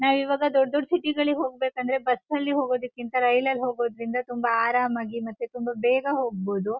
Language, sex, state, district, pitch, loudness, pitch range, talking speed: Kannada, female, Karnataka, Shimoga, 250 Hz, -25 LUFS, 240-270 Hz, 175 wpm